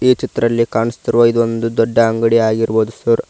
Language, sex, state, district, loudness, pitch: Kannada, male, Karnataka, Koppal, -15 LUFS, 115 Hz